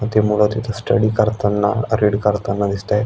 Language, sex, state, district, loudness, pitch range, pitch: Marathi, male, Maharashtra, Aurangabad, -18 LUFS, 105-110 Hz, 105 Hz